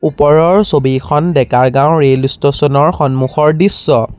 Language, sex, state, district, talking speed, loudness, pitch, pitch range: Assamese, male, Assam, Sonitpur, 130 wpm, -11 LUFS, 145 Hz, 130-155 Hz